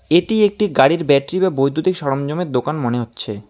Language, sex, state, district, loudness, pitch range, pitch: Bengali, male, West Bengal, Alipurduar, -17 LUFS, 135-185 Hz, 150 Hz